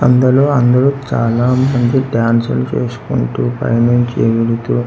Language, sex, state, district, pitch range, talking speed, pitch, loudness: Telugu, male, Andhra Pradesh, Manyam, 115-130 Hz, 110 wpm, 120 Hz, -14 LUFS